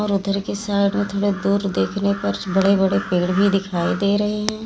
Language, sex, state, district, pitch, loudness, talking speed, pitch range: Hindi, female, Uttar Pradesh, Lalitpur, 200 Hz, -20 LUFS, 195 wpm, 195-200 Hz